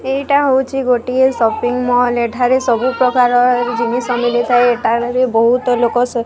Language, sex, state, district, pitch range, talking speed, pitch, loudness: Odia, female, Odisha, Sambalpur, 240-255 Hz, 135 wpm, 245 Hz, -14 LUFS